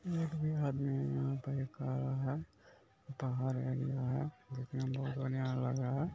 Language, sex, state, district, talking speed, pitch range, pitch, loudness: Hindi, male, Bihar, Araria, 205 wpm, 130-140 Hz, 135 Hz, -38 LUFS